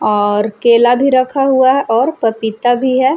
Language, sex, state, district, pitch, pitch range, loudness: Hindi, female, Jharkhand, Palamu, 245 Hz, 225-265 Hz, -12 LUFS